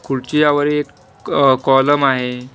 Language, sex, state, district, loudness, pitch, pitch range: Marathi, male, Maharashtra, Washim, -15 LUFS, 135 Hz, 130-145 Hz